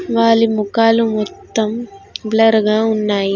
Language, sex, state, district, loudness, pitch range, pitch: Telugu, female, Telangana, Hyderabad, -15 LUFS, 215-230 Hz, 220 Hz